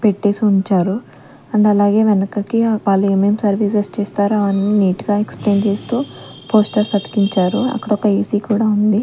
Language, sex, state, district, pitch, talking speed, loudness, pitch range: Telugu, female, Andhra Pradesh, Sri Satya Sai, 205 Hz, 145 wpm, -16 LUFS, 200-215 Hz